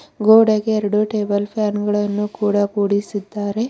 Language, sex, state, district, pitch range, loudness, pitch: Kannada, female, Karnataka, Bidar, 205-215 Hz, -18 LUFS, 210 Hz